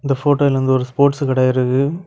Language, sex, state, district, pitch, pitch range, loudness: Tamil, male, Tamil Nadu, Kanyakumari, 135 Hz, 130-140 Hz, -16 LUFS